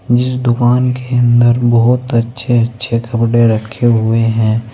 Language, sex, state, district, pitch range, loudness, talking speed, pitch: Hindi, male, Uttar Pradesh, Saharanpur, 115-120 Hz, -13 LUFS, 140 wpm, 120 Hz